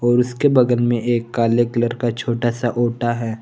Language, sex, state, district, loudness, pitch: Hindi, male, Jharkhand, Garhwa, -19 LUFS, 120 Hz